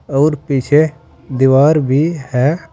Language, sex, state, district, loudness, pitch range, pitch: Hindi, male, Uttar Pradesh, Saharanpur, -14 LUFS, 135-155 Hz, 145 Hz